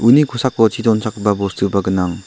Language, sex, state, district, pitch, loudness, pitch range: Garo, male, Meghalaya, South Garo Hills, 110 Hz, -16 LUFS, 100-115 Hz